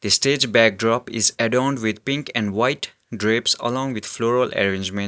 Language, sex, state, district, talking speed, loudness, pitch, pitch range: English, male, Sikkim, Gangtok, 155 wpm, -20 LUFS, 115 Hz, 105-125 Hz